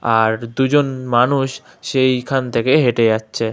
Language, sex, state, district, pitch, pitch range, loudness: Bengali, male, West Bengal, Malda, 125 Hz, 115-135 Hz, -17 LUFS